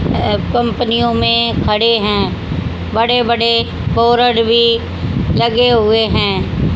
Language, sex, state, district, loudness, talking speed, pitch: Hindi, female, Haryana, Rohtak, -13 LUFS, 105 wpm, 230 Hz